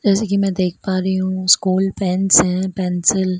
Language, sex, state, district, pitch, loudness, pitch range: Hindi, female, Madhya Pradesh, Dhar, 185 Hz, -17 LUFS, 185-195 Hz